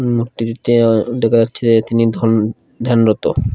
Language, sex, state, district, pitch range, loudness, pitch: Bengali, male, Odisha, Khordha, 110-120 Hz, -15 LUFS, 115 Hz